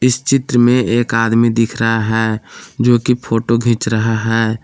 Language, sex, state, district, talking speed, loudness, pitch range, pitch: Hindi, male, Jharkhand, Palamu, 180 wpm, -14 LUFS, 115-120 Hz, 115 Hz